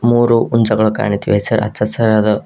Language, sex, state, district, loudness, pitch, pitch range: Kannada, male, Karnataka, Koppal, -14 LUFS, 110 Hz, 105-115 Hz